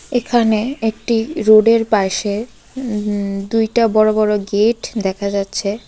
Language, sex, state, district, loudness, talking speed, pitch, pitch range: Bengali, female, Tripura, West Tripura, -16 LUFS, 110 wpm, 215 Hz, 205-225 Hz